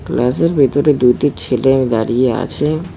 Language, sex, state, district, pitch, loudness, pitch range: Bengali, male, West Bengal, Cooch Behar, 130 Hz, -14 LUFS, 125-150 Hz